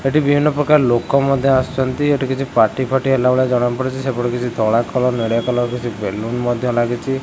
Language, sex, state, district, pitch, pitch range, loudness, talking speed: Odia, male, Odisha, Khordha, 125 Hz, 120-135 Hz, -17 LUFS, 190 wpm